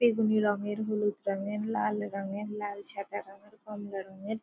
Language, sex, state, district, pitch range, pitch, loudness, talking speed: Bengali, female, West Bengal, Jalpaiguri, 200-210 Hz, 205 Hz, -32 LUFS, 160 wpm